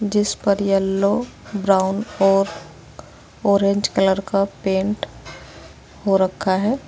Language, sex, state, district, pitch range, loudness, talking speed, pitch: Hindi, female, Uttar Pradesh, Saharanpur, 195-205 Hz, -20 LUFS, 105 wpm, 200 Hz